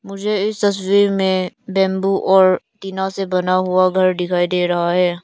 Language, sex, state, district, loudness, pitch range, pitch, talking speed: Hindi, female, Arunachal Pradesh, Lower Dibang Valley, -17 LUFS, 180-195 Hz, 190 Hz, 170 wpm